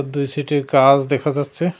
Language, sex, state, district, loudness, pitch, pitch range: Bengali, male, West Bengal, Cooch Behar, -17 LUFS, 145 Hz, 140-145 Hz